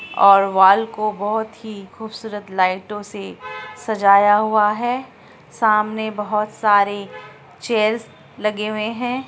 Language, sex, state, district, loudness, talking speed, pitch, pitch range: Hindi, female, Bihar, Araria, -18 LUFS, 115 wpm, 210 Hz, 200-220 Hz